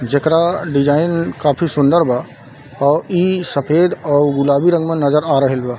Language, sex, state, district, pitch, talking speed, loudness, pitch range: Hindi, male, Bihar, Darbhanga, 145 Hz, 175 wpm, -15 LUFS, 140-170 Hz